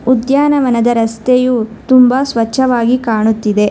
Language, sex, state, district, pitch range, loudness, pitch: Kannada, female, Karnataka, Bangalore, 225-255 Hz, -12 LUFS, 245 Hz